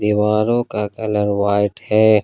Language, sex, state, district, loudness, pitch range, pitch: Hindi, male, Jharkhand, Ranchi, -18 LUFS, 105-110 Hz, 105 Hz